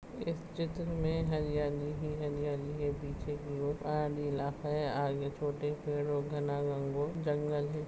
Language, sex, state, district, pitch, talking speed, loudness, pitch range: Hindi, male, Goa, North and South Goa, 145 Hz, 150 wpm, -36 LUFS, 145-150 Hz